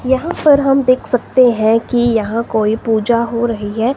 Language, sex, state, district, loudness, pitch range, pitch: Hindi, female, Himachal Pradesh, Shimla, -14 LUFS, 225-255 Hz, 235 Hz